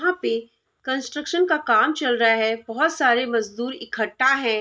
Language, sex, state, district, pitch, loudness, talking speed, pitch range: Hindi, female, Bihar, Vaishali, 250 Hz, -21 LUFS, 170 wpm, 230-295 Hz